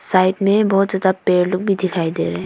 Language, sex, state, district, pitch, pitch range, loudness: Hindi, female, Arunachal Pradesh, Papum Pare, 185 Hz, 180-195 Hz, -17 LUFS